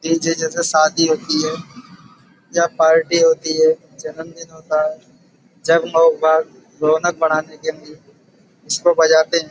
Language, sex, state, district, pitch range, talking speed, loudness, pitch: Hindi, male, Uttar Pradesh, Budaun, 160-170 Hz, 135 wpm, -16 LUFS, 160 Hz